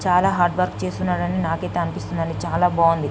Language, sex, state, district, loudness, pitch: Telugu, female, Andhra Pradesh, Guntur, -21 LUFS, 165 Hz